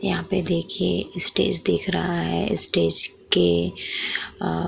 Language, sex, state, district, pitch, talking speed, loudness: Hindi, female, Uttar Pradesh, Muzaffarnagar, 85 Hz, 140 wpm, -19 LUFS